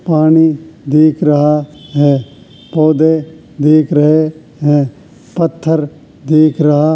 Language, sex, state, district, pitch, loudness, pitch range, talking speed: Hindi, male, Uttar Pradesh, Hamirpur, 155 Hz, -12 LUFS, 150-155 Hz, 105 wpm